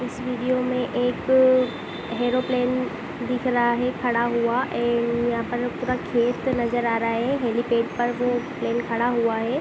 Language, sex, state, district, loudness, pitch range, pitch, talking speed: Hindi, female, Chhattisgarh, Bilaspur, -23 LUFS, 235-250 Hz, 245 Hz, 160 wpm